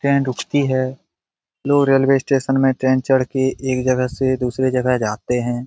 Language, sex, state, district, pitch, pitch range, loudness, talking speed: Hindi, male, Bihar, Jamui, 130 Hz, 125-135 Hz, -18 LUFS, 180 wpm